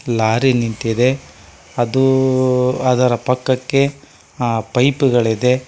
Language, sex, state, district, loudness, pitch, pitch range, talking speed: Kannada, male, Karnataka, Koppal, -16 LUFS, 125 Hz, 120-130 Hz, 85 wpm